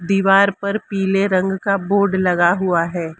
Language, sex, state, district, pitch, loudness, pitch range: Hindi, female, Maharashtra, Mumbai Suburban, 195 Hz, -17 LUFS, 180-200 Hz